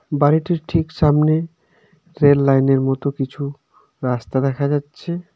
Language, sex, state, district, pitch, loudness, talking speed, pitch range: Bengali, male, West Bengal, Darjeeling, 145 Hz, -18 LUFS, 110 wpm, 135-165 Hz